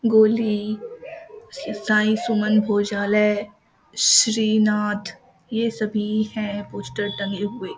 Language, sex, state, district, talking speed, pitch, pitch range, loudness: Maithili, female, Bihar, Samastipur, 100 wpm, 215 Hz, 205-220 Hz, -21 LUFS